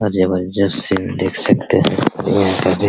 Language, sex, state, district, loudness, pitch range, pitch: Hindi, male, Bihar, Araria, -16 LUFS, 95-100 Hz, 95 Hz